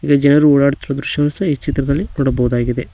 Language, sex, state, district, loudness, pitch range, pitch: Kannada, male, Karnataka, Koppal, -15 LUFS, 135-145 Hz, 140 Hz